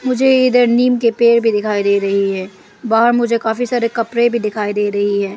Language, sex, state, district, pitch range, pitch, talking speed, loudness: Hindi, female, Arunachal Pradesh, Lower Dibang Valley, 205-240 Hz, 230 Hz, 225 wpm, -15 LUFS